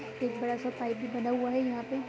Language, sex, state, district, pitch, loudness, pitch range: Hindi, female, Chhattisgarh, Raigarh, 245 Hz, -32 LUFS, 240-250 Hz